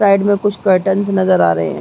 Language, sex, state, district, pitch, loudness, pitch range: Hindi, female, Chhattisgarh, Raigarh, 195 Hz, -14 LUFS, 185-200 Hz